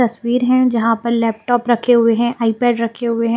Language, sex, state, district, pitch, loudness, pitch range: Hindi, female, Haryana, Jhajjar, 235 Hz, -16 LUFS, 230-245 Hz